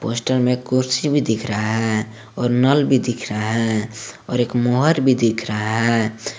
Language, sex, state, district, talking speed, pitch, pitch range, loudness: Hindi, male, Jharkhand, Garhwa, 190 wpm, 115 Hz, 110-130 Hz, -19 LUFS